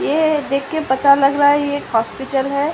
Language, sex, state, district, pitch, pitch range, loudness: Hindi, female, Uttar Pradesh, Ghazipur, 280 Hz, 270-290 Hz, -16 LUFS